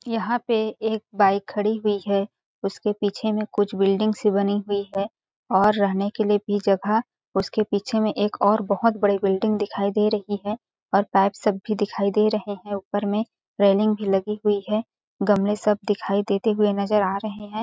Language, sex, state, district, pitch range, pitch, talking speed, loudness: Hindi, female, Chhattisgarh, Balrampur, 200-215 Hz, 205 Hz, 195 wpm, -23 LUFS